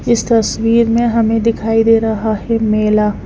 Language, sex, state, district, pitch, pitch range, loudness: Hindi, female, Punjab, Fazilka, 225 Hz, 220-230 Hz, -13 LUFS